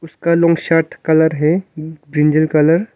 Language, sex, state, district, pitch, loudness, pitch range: Hindi, male, Arunachal Pradesh, Longding, 160 Hz, -15 LUFS, 155-165 Hz